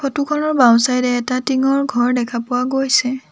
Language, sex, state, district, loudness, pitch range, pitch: Assamese, female, Assam, Sonitpur, -16 LUFS, 245-275 Hz, 255 Hz